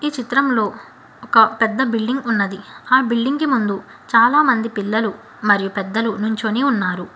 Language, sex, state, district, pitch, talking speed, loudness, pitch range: Telugu, female, Telangana, Hyderabad, 225 Hz, 135 wpm, -18 LUFS, 205-260 Hz